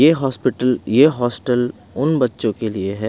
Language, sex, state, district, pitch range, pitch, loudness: Hindi, male, Bihar, Kaimur, 110-135 Hz, 125 Hz, -18 LUFS